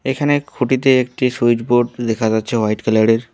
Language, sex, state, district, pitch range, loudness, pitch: Bengali, male, West Bengal, Alipurduar, 115-130 Hz, -16 LUFS, 120 Hz